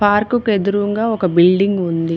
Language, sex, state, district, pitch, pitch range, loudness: Telugu, female, Telangana, Mahabubabad, 200 Hz, 180-210 Hz, -16 LUFS